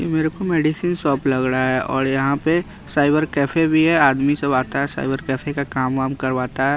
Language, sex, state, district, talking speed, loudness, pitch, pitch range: Hindi, male, Bihar, West Champaran, 215 wpm, -19 LUFS, 140 Hz, 135-155 Hz